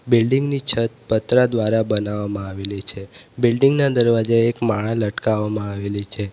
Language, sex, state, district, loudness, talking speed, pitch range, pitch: Gujarati, male, Gujarat, Valsad, -19 LUFS, 150 wpm, 105-120 Hz, 110 Hz